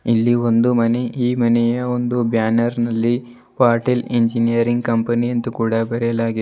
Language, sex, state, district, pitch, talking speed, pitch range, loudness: Kannada, male, Karnataka, Bidar, 120 Hz, 130 wpm, 115-120 Hz, -18 LUFS